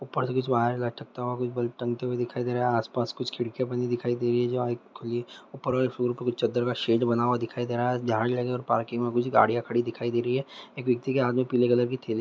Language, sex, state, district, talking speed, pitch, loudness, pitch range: Hindi, male, Bihar, Lakhisarai, 290 wpm, 120 Hz, -27 LUFS, 120-125 Hz